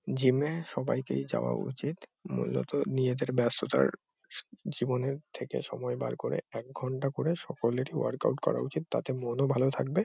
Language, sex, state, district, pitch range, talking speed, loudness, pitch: Bengali, male, West Bengal, Kolkata, 120-140 Hz, 155 wpm, -32 LUFS, 130 Hz